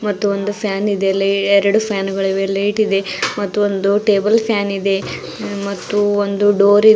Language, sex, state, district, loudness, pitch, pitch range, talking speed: Kannada, female, Karnataka, Bidar, -16 LUFS, 200 Hz, 195-205 Hz, 170 wpm